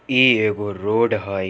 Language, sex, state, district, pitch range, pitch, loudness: Maithili, male, Bihar, Samastipur, 100-115 Hz, 105 Hz, -19 LUFS